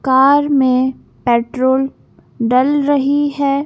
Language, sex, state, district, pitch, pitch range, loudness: Hindi, female, Madhya Pradesh, Bhopal, 270 Hz, 260-285 Hz, -15 LUFS